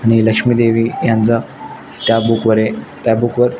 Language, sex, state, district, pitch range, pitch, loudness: Marathi, male, Maharashtra, Nagpur, 115-120 Hz, 115 Hz, -14 LUFS